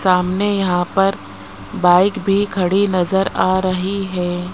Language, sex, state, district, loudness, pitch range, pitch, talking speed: Hindi, male, Rajasthan, Jaipur, -17 LUFS, 180-195 Hz, 185 Hz, 130 wpm